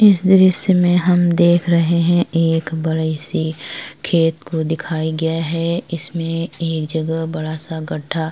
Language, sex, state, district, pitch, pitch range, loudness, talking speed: Hindi, female, Chhattisgarh, Korba, 165 Hz, 160-175 Hz, -17 LUFS, 150 wpm